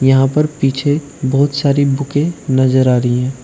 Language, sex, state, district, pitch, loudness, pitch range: Hindi, male, Uttar Pradesh, Shamli, 135 Hz, -14 LUFS, 130-145 Hz